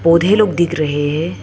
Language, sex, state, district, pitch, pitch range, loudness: Hindi, female, Arunachal Pradesh, Lower Dibang Valley, 170 Hz, 155-175 Hz, -15 LUFS